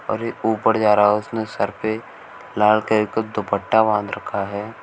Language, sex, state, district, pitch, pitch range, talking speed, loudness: Hindi, male, Uttar Pradesh, Shamli, 110 Hz, 105-110 Hz, 185 wpm, -20 LUFS